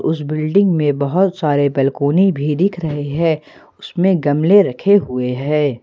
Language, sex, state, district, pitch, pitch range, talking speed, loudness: Hindi, male, Jharkhand, Ranchi, 155 Hz, 145-185 Hz, 155 wpm, -16 LUFS